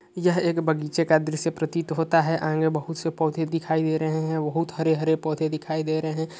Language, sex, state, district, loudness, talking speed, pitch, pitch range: Hindi, male, Uttar Pradesh, Etah, -24 LUFS, 225 wpm, 160 Hz, 155-165 Hz